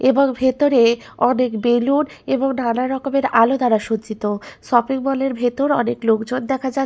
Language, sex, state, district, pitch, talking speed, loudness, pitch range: Bengali, female, West Bengal, Malda, 255 Hz, 155 wpm, -18 LUFS, 235-270 Hz